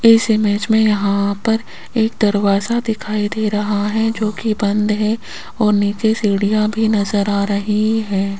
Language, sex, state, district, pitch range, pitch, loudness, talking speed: Hindi, female, Rajasthan, Jaipur, 205-220 Hz, 215 Hz, -17 LUFS, 155 wpm